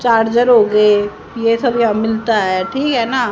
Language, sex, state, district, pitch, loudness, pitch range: Hindi, female, Haryana, Jhajjar, 230 Hz, -14 LUFS, 210-240 Hz